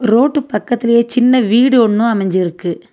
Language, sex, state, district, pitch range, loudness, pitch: Tamil, female, Tamil Nadu, Nilgiris, 210-245 Hz, -13 LUFS, 235 Hz